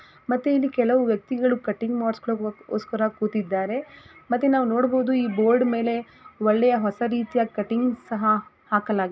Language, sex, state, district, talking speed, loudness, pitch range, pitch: Kannada, female, Karnataka, Gulbarga, 125 wpm, -24 LUFS, 215-250 Hz, 235 Hz